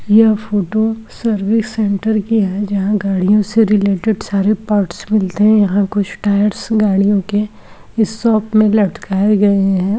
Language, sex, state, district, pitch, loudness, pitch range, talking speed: Hindi, female, Bihar, Saran, 210 Hz, -15 LUFS, 200-215 Hz, 155 wpm